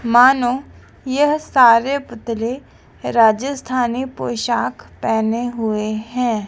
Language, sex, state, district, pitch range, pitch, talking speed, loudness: Hindi, female, Madhya Pradesh, Dhar, 230-260 Hz, 240 Hz, 85 wpm, -18 LUFS